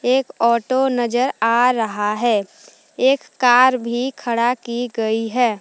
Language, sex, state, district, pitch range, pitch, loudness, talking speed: Hindi, female, Jharkhand, Palamu, 230-255 Hz, 240 Hz, -18 LUFS, 140 wpm